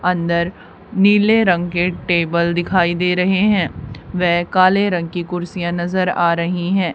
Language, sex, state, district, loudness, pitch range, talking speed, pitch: Hindi, female, Haryana, Charkhi Dadri, -17 LUFS, 175-185 Hz, 155 wpm, 180 Hz